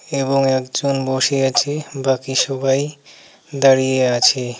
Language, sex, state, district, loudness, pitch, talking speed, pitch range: Bengali, male, West Bengal, Alipurduar, -17 LUFS, 135 Hz, 105 wpm, 130-140 Hz